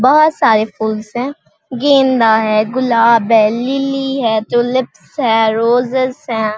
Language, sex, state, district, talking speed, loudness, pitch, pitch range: Hindi, female, Chhattisgarh, Balrampur, 125 wpm, -13 LUFS, 235 Hz, 220-260 Hz